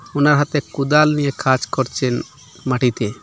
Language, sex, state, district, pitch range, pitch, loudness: Bengali, male, Assam, Hailakandi, 125-150 Hz, 140 Hz, -18 LUFS